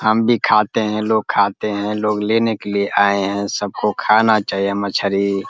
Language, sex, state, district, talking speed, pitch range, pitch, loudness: Hindi, male, Uttar Pradesh, Deoria, 205 wpm, 100-110 Hz, 105 Hz, -17 LUFS